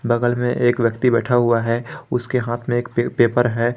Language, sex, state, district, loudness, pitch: Hindi, male, Jharkhand, Garhwa, -19 LUFS, 120 Hz